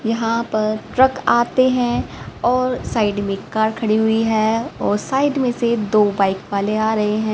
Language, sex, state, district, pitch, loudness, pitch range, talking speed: Hindi, female, Haryana, Rohtak, 220 Hz, -18 LUFS, 215-240 Hz, 180 wpm